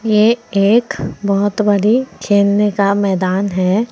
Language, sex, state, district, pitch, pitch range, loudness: Hindi, female, Uttar Pradesh, Saharanpur, 205 Hz, 195-215 Hz, -15 LUFS